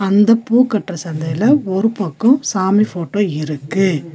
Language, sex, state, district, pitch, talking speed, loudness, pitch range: Tamil, female, Tamil Nadu, Nilgiris, 195 Hz, 130 wpm, -16 LUFS, 170-220 Hz